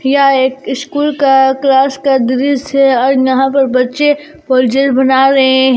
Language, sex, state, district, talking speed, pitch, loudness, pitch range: Hindi, female, Jharkhand, Garhwa, 165 wpm, 270 Hz, -11 LUFS, 260-275 Hz